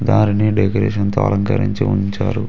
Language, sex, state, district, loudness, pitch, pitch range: Telugu, male, Telangana, Mahabubabad, -17 LUFS, 105 Hz, 100-110 Hz